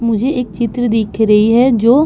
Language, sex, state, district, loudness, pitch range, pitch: Hindi, female, Uttar Pradesh, Budaun, -13 LUFS, 225-245 Hz, 235 Hz